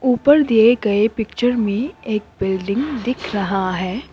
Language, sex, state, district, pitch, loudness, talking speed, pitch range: Hindi, female, Assam, Kamrup Metropolitan, 225 Hz, -18 LUFS, 145 wpm, 200-250 Hz